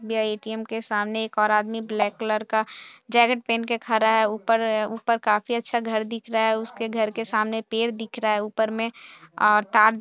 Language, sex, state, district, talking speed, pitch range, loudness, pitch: Hindi, female, Bihar, Saharsa, 210 wpm, 215-225 Hz, -24 LUFS, 220 Hz